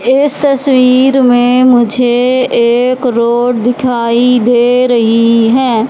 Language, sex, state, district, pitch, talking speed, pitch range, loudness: Hindi, female, Madhya Pradesh, Katni, 245 Hz, 100 wpm, 235-255 Hz, -9 LUFS